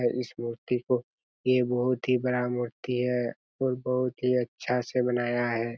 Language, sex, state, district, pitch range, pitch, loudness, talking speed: Hindi, male, Chhattisgarh, Raigarh, 120-125 Hz, 125 Hz, -28 LUFS, 185 wpm